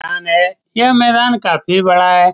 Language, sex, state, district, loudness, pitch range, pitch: Hindi, male, Bihar, Saran, -12 LUFS, 180-240 Hz, 190 Hz